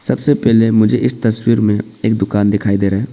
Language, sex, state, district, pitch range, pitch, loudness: Hindi, male, Arunachal Pradesh, Papum Pare, 105-115 Hz, 110 Hz, -14 LUFS